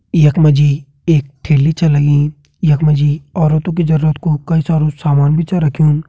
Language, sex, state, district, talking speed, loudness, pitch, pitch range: Garhwali, male, Uttarakhand, Tehri Garhwal, 175 wpm, -13 LUFS, 155 Hz, 145-160 Hz